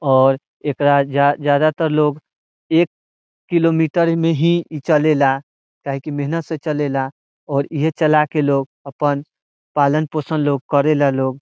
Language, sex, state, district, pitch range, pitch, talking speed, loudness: Bhojpuri, male, Bihar, Saran, 140-155 Hz, 145 Hz, 165 wpm, -18 LUFS